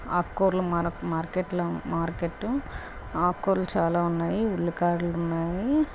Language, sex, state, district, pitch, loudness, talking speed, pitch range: Telugu, female, Andhra Pradesh, Srikakulam, 175 Hz, -27 LUFS, 110 wpm, 170-190 Hz